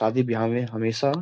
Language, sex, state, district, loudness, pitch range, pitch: Hindi, male, Bihar, Jamui, -25 LUFS, 115-130 Hz, 115 Hz